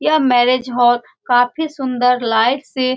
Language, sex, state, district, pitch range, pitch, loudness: Hindi, female, Bihar, Saran, 245-265 Hz, 250 Hz, -16 LUFS